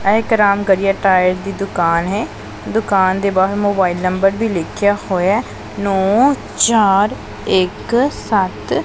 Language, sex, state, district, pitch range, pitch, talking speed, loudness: Punjabi, male, Punjab, Pathankot, 190-205 Hz, 195 Hz, 140 wpm, -15 LUFS